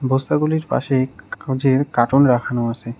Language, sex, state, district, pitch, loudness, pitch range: Bengali, male, West Bengal, Alipurduar, 130 Hz, -18 LUFS, 120-135 Hz